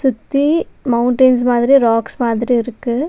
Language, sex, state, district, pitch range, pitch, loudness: Tamil, female, Tamil Nadu, Nilgiris, 235-265 Hz, 245 Hz, -15 LUFS